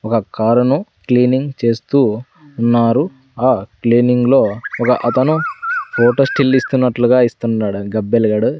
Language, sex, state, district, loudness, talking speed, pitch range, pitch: Telugu, male, Andhra Pradesh, Sri Satya Sai, -15 LUFS, 110 wpm, 115-135 Hz, 125 Hz